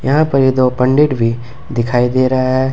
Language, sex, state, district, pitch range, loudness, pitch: Hindi, male, Jharkhand, Ranchi, 125-135 Hz, -14 LUFS, 130 Hz